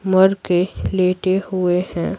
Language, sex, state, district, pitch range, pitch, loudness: Hindi, female, Bihar, Patna, 180-190 Hz, 185 Hz, -18 LUFS